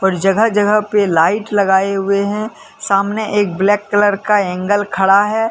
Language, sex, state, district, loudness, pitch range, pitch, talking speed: Hindi, male, Jharkhand, Deoghar, -14 LUFS, 195-210 Hz, 205 Hz, 175 wpm